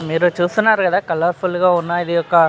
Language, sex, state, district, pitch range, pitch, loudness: Telugu, male, Telangana, Nalgonda, 170-180 Hz, 175 Hz, -16 LUFS